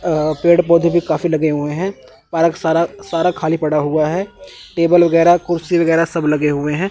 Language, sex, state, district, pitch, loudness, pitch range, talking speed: Hindi, male, Chandigarh, Chandigarh, 165 Hz, -16 LUFS, 155-175 Hz, 200 wpm